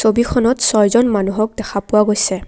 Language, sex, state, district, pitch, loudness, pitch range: Assamese, female, Assam, Kamrup Metropolitan, 215 Hz, -15 LUFS, 205-235 Hz